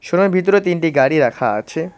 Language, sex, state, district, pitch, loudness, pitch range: Bengali, male, West Bengal, Cooch Behar, 175 Hz, -16 LUFS, 160-190 Hz